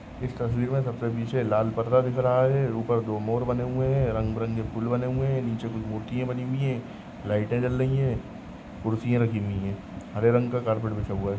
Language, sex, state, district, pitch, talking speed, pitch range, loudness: Hindi, male, Maharashtra, Chandrapur, 120 Hz, 220 wpm, 110-125 Hz, -27 LUFS